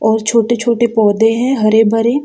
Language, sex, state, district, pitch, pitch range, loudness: Hindi, female, Uttar Pradesh, Jalaun, 225 Hz, 220-235 Hz, -12 LUFS